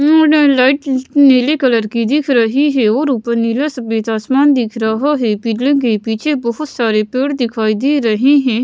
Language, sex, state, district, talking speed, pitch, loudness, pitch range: Hindi, female, Bihar, West Champaran, 175 wpm, 255 Hz, -14 LUFS, 230-285 Hz